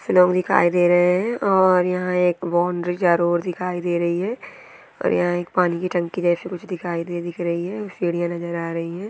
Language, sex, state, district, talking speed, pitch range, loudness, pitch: Hindi, female, Goa, North and South Goa, 220 wpm, 175-180 Hz, -21 LUFS, 175 Hz